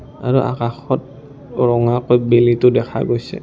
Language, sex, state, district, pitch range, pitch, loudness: Assamese, male, Assam, Kamrup Metropolitan, 120-130 Hz, 125 Hz, -16 LUFS